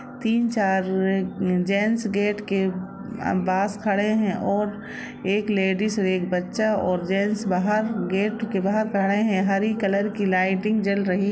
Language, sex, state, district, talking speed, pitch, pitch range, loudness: Hindi, female, Jharkhand, Jamtara, 145 wpm, 200 Hz, 190-215 Hz, -23 LUFS